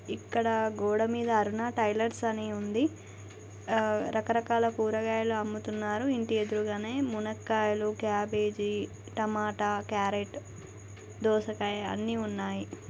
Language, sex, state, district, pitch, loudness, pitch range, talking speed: Telugu, female, Telangana, Nalgonda, 215 Hz, -31 LUFS, 205-225 Hz, 90 wpm